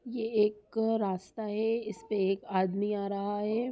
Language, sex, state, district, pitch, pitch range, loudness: Hindi, female, Bihar, Sitamarhi, 210 Hz, 200-225 Hz, -31 LUFS